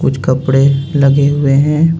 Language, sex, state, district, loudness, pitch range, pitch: Hindi, male, Jharkhand, Ranchi, -12 LUFS, 135-145 Hz, 140 Hz